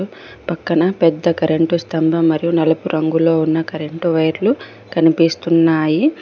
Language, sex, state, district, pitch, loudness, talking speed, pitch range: Telugu, female, Telangana, Mahabubabad, 165 Hz, -16 LUFS, 115 wpm, 160-170 Hz